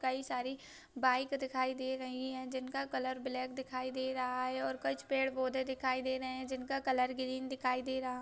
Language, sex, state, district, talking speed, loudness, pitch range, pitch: Hindi, female, Maharashtra, Dhule, 205 wpm, -37 LUFS, 255-260 Hz, 260 Hz